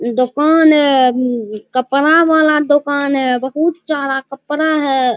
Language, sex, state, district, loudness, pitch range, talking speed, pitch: Hindi, male, Bihar, Araria, -14 LUFS, 255-305 Hz, 115 wpm, 280 Hz